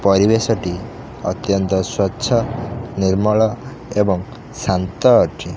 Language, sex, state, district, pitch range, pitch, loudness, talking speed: Odia, male, Odisha, Khordha, 95-120 Hz, 110 Hz, -18 LUFS, 85 wpm